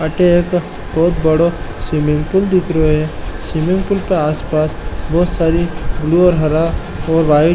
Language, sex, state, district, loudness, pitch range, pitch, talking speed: Marwari, male, Rajasthan, Nagaur, -15 LUFS, 155-175 Hz, 165 Hz, 165 wpm